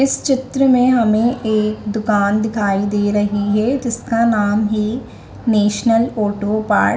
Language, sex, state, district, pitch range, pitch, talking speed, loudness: Hindi, female, Madhya Pradesh, Dhar, 205-235 Hz, 215 Hz, 145 wpm, -16 LUFS